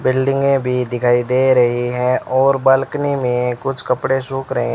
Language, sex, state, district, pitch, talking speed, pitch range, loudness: Hindi, male, Rajasthan, Bikaner, 130 Hz, 165 wpm, 125-135 Hz, -16 LUFS